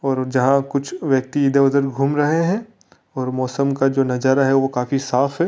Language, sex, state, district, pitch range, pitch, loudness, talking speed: Hindi, male, Andhra Pradesh, Anantapur, 130-140 Hz, 135 Hz, -19 LUFS, 185 wpm